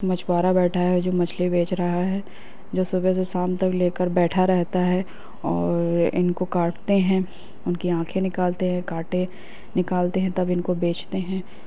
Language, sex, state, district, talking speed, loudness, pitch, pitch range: Hindi, female, Uttar Pradesh, Budaun, 165 wpm, -23 LUFS, 180 Hz, 175-185 Hz